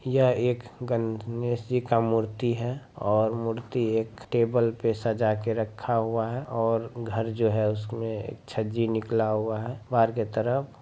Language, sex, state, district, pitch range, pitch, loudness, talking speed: Maithili, male, Bihar, Bhagalpur, 110-120 Hz, 115 Hz, -27 LUFS, 160 wpm